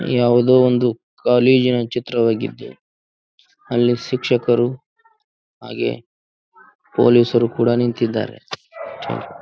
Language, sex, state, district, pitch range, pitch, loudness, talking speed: Kannada, male, Karnataka, Gulbarga, 115-125 Hz, 120 Hz, -18 LUFS, 70 wpm